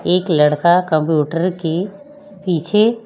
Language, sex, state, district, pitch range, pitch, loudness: Hindi, female, Chhattisgarh, Raipur, 160-195 Hz, 175 Hz, -16 LUFS